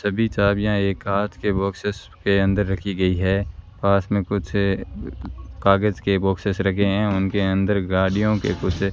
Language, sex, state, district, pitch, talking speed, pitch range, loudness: Hindi, female, Rajasthan, Bikaner, 100 Hz, 160 wpm, 95-100 Hz, -21 LUFS